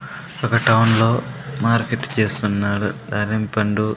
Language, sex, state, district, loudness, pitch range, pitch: Telugu, male, Andhra Pradesh, Sri Satya Sai, -19 LUFS, 105-115 Hz, 110 Hz